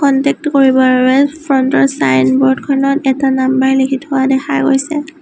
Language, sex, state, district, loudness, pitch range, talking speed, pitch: Assamese, female, Assam, Sonitpur, -12 LUFS, 260-280 Hz, 160 wpm, 270 Hz